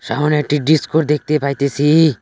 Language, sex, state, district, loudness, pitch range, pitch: Bengali, male, West Bengal, Cooch Behar, -15 LUFS, 140-155 Hz, 150 Hz